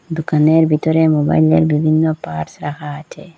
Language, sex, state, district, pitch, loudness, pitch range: Bengali, female, Assam, Hailakandi, 155 Hz, -15 LUFS, 145-160 Hz